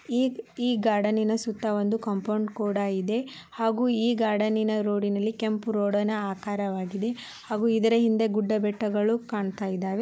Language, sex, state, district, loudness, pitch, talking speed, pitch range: Kannada, male, Karnataka, Dharwad, -26 LUFS, 215 Hz, 155 wpm, 205-225 Hz